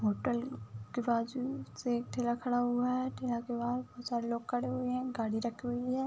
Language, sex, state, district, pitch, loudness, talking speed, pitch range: Hindi, female, Uttar Pradesh, Budaun, 245 Hz, -35 LUFS, 205 wpm, 235-250 Hz